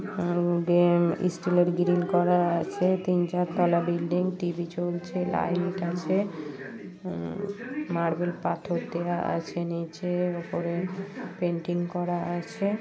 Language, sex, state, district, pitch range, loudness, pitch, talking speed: Bengali, female, West Bengal, Paschim Medinipur, 170-180 Hz, -27 LUFS, 175 Hz, 110 wpm